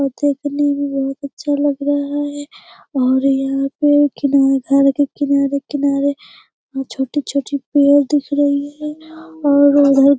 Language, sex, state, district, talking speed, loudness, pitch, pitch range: Hindi, female, Bihar, Jamui, 130 wpm, -16 LUFS, 285 Hz, 275-290 Hz